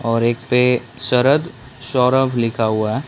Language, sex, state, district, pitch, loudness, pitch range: Hindi, male, Chhattisgarh, Korba, 125 Hz, -17 LUFS, 115-130 Hz